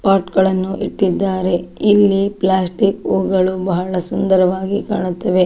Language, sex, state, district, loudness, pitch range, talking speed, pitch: Kannada, female, Karnataka, Dakshina Kannada, -16 LUFS, 185-195 Hz, 100 wpm, 190 Hz